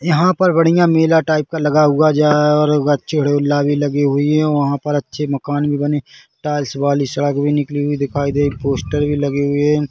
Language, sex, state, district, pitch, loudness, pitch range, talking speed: Hindi, male, Chhattisgarh, Rajnandgaon, 145 Hz, -16 LUFS, 145-150 Hz, 210 wpm